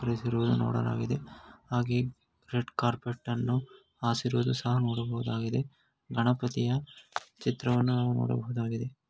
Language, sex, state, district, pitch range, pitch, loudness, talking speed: Kannada, male, Karnataka, Gulbarga, 115-125 Hz, 120 Hz, -31 LUFS, 90 wpm